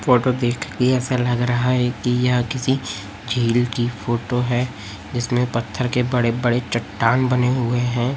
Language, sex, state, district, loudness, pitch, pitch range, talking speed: Hindi, male, Chhattisgarh, Raipur, -20 LUFS, 125 Hz, 120-125 Hz, 160 wpm